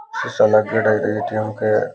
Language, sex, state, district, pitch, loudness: Rajasthani, male, Rajasthan, Nagaur, 110 Hz, -18 LUFS